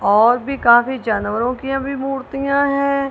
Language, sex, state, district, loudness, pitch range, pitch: Hindi, female, Punjab, Kapurthala, -17 LUFS, 235-275 Hz, 265 Hz